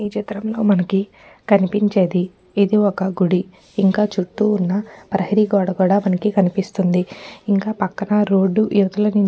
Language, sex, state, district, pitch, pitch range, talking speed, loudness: Telugu, female, Telangana, Nalgonda, 200 Hz, 190-210 Hz, 110 wpm, -18 LUFS